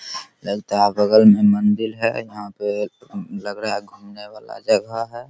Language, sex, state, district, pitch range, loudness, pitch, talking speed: Hindi, male, Bihar, Begusarai, 105-120 Hz, -19 LUFS, 110 Hz, 170 wpm